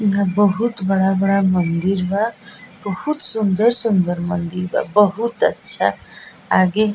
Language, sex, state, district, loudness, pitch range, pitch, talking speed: Bhojpuri, female, Bihar, East Champaran, -17 LUFS, 185-215 Hz, 200 Hz, 110 wpm